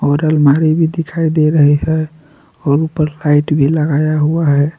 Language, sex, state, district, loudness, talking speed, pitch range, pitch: Hindi, male, Jharkhand, Palamu, -13 LUFS, 150 wpm, 145-160 Hz, 155 Hz